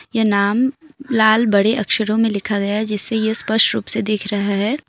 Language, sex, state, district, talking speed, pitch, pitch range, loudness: Hindi, female, Assam, Kamrup Metropolitan, 195 wpm, 220 Hz, 205-225 Hz, -17 LUFS